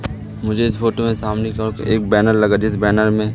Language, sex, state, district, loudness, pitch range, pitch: Hindi, male, Madhya Pradesh, Katni, -17 LUFS, 105-110 Hz, 110 Hz